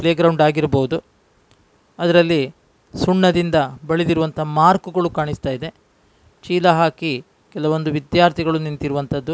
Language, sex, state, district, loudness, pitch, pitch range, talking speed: Kannada, male, Karnataka, Dakshina Kannada, -18 LUFS, 160 Hz, 145-170 Hz, 105 wpm